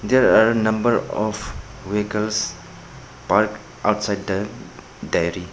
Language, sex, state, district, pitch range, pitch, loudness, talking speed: English, male, Arunachal Pradesh, Papum Pare, 100-110 Hz, 105 Hz, -21 LUFS, 100 wpm